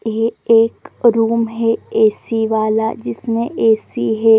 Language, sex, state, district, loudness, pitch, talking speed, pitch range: Hindi, female, Chandigarh, Chandigarh, -16 LUFS, 225 Hz, 135 wpm, 220-230 Hz